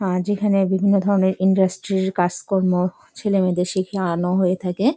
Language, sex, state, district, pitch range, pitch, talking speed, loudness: Bengali, female, West Bengal, Jalpaiguri, 180-195 Hz, 190 Hz, 170 wpm, -20 LUFS